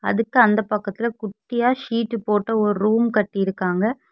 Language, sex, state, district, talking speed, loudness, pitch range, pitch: Tamil, female, Tamil Nadu, Kanyakumari, 130 wpm, -21 LUFS, 210-230 Hz, 220 Hz